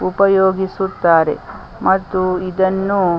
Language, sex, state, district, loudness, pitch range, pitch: Kannada, female, Karnataka, Chamarajanagar, -16 LUFS, 185-190 Hz, 190 Hz